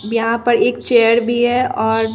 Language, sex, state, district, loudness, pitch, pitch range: Hindi, female, Bihar, Katihar, -15 LUFS, 230 Hz, 225-240 Hz